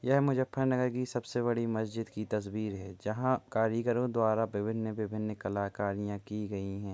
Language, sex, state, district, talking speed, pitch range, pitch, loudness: Hindi, male, Uttar Pradesh, Muzaffarnagar, 165 wpm, 105-120 Hz, 110 Hz, -33 LUFS